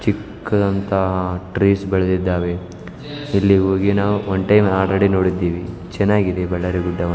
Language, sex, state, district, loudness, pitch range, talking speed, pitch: Kannada, male, Karnataka, Bellary, -18 LUFS, 90-100 Hz, 110 wpm, 95 Hz